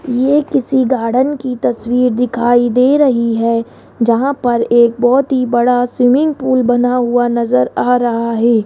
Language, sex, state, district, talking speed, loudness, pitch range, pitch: Hindi, female, Rajasthan, Jaipur, 160 wpm, -13 LUFS, 235-260 Hz, 245 Hz